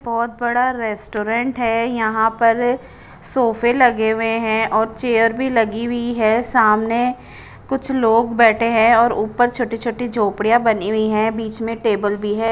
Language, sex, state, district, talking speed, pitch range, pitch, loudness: Hindi, female, Chandigarh, Chandigarh, 165 wpm, 220-240 Hz, 230 Hz, -17 LUFS